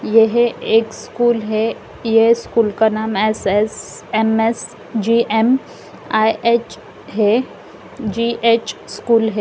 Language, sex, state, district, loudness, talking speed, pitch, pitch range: Hindi, female, Uttar Pradesh, Lalitpur, -17 LUFS, 85 wpm, 225 Hz, 220-235 Hz